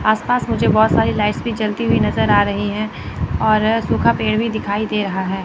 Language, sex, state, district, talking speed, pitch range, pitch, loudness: Hindi, female, Chandigarh, Chandigarh, 230 wpm, 205-220 Hz, 215 Hz, -17 LUFS